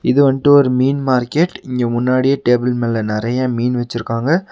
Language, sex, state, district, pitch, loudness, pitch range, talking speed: Tamil, male, Tamil Nadu, Nilgiris, 125 Hz, -16 LUFS, 120-135 Hz, 160 wpm